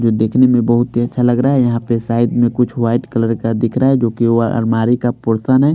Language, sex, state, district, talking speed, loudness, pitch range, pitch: Hindi, male, Bihar, Patna, 270 wpm, -15 LUFS, 115-125 Hz, 120 Hz